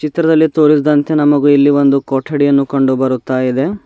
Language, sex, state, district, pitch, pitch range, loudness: Kannada, male, Karnataka, Bidar, 145 Hz, 135-150 Hz, -12 LUFS